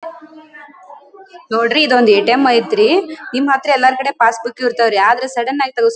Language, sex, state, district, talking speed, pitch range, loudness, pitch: Kannada, female, Karnataka, Dharwad, 150 wpm, 235-310 Hz, -13 LUFS, 260 Hz